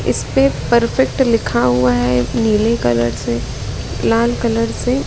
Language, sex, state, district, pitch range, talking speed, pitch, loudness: Hindi, female, Madhya Pradesh, Katni, 120-140 Hz, 130 wpm, 125 Hz, -16 LUFS